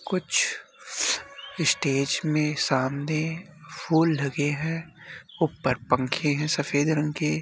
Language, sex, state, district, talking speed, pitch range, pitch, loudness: Hindi, male, Bihar, Bhagalpur, 105 wpm, 140-165 Hz, 155 Hz, -25 LUFS